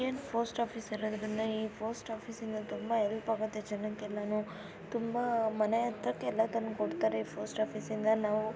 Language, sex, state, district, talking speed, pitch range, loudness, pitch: Kannada, female, Karnataka, Belgaum, 135 wpm, 215-230 Hz, -35 LUFS, 220 Hz